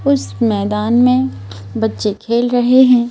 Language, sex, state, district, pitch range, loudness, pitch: Hindi, female, Madhya Pradesh, Bhopal, 200-250 Hz, -14 LUFS, 235 Hz